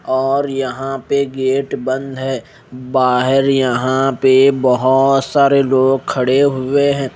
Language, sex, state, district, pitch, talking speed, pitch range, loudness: Hindi, male, Chandigarh, Chandigarh, 135 Hz, 125 wpm, 130-135 Hz, -15 LUFS